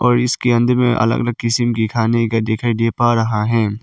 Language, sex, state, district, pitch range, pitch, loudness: Hindi, male, Arunachal Pradesh, Lower Dibang Valley, 115-120 Hz, 115 Hz, -16 LUFS